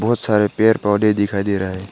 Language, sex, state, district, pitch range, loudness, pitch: Hindi, male, Arunachal Pradesh, Lower Dibang Valley, 100-110 Hz, -17 LUFS, 105 Hz